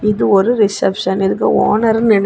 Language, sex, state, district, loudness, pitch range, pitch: Tamil, female, Tamil Nadu, Kanyakumari, -14 LUFS, 195-220 Hz, 210 Hz